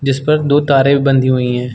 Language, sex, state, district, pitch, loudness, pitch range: Hindi, male, Uttar Pradesh, Muzaffarnagar, 135 Hz, -13 LUFS, 130-140 Hz